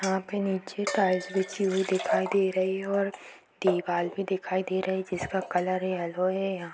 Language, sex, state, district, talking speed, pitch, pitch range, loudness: Bhojpuri, female, Bihar, Saran, 205 wpm, 190 Hz, 185-195 Hz, -28 LUFS